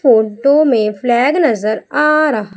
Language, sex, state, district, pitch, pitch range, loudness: Hindi, female, Madhya Pradesh, Umaria, 245 Hz, 220-300 Hz, -13 LUFS